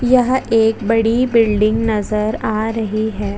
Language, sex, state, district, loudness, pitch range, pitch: Hindi, female, Chhattisgarh, Jashpur, -16 LUFS, 215-230 Hz, 220 Hz